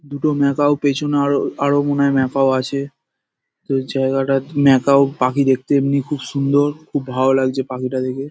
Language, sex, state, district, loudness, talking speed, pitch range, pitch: Bengali, male, West Bengal, Paschim Medinipur, -17 LUFS, 165 wpm, 135-145 Hz, 140 Hz